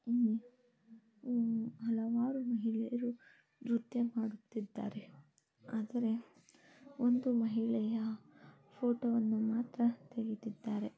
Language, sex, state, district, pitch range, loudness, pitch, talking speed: Kannada, female, Karnataka, Dakshina Kannada, 220-240 Hz, -37 LUFS, 230 Hz, 70 wpm